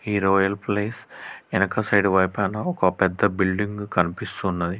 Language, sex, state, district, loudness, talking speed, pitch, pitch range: Telugu, male, Telangana, Hyderabad, -23 LUFS, 140 wpm, 100 Hz, 95-105 Hz